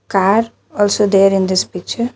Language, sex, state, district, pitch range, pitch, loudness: English, female, Telangana, Hyderabad, 195-220 Hz, 200 Hz, -15 LUFS